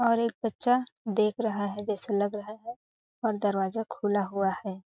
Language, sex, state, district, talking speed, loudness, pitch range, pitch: Hindi, female, Chhattisgarh, Balrampur, 185 wpm, -29 LUFS, 205-230 Hz, 210 Hz